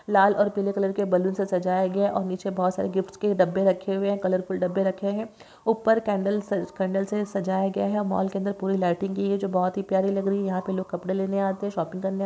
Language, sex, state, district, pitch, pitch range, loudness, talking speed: Hindi, female, Bihar, Saharsa, 195 Hz, 190-200 Hz, -25 LUFS, 285 wpm